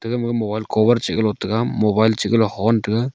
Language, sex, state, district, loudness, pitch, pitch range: Wancho, male, Arunachal Pradesh, Longding, -19 LUFS, 110 Hz, 110-115 Hz